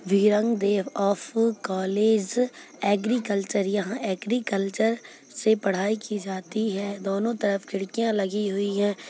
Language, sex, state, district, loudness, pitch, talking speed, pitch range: Hindi, female, Chhattisgarh, Kabirdham, -25 LUFS, 205 Hz, 105 wpm, 195-220 Hz